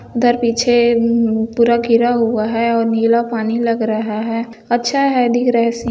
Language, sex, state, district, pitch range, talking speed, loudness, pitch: Hindi, female, Chhattisgarh, Bilaspur, 230-240 Hz, 195 wpm, -15 LUFS, 235 Hz